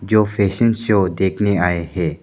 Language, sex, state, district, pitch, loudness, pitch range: Hindi, male, Arunachal Pradesh, Papum Pare, 100 Hz, -18 LUFS, 90-105 Hz